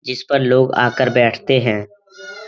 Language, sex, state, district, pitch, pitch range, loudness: Hindi, male, Bihar, Jamui, 130 Hz, 120-140 Hz, -16 LUFS